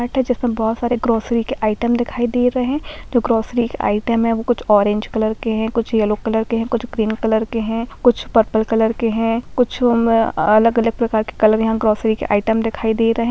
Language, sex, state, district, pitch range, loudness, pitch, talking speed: Hindi, female, Bihar, Muzaffarpur, 220-240 Hz, -18 LUFS, 225 Hz, 235 wpm